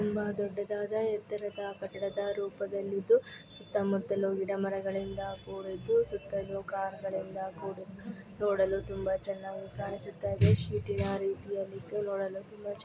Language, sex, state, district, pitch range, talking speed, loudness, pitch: Kannada, female, Karnataka, Belgaum, 195-205 Hz, 105 wpm, -34 LUFS, 195 Hz